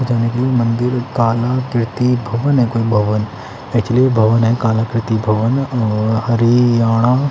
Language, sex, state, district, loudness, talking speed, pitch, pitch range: Hindi, male, Chandigarh, Chandigarh, -15 LUFS, 100 wpm, 115 Hz, 115-125 Hz